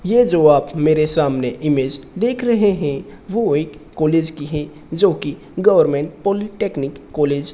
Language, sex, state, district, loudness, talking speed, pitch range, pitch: Hindi, male, Rajasthan, Bikaner, -18 LUFS, 160 wpm, 145-200 Hz, 155 Hz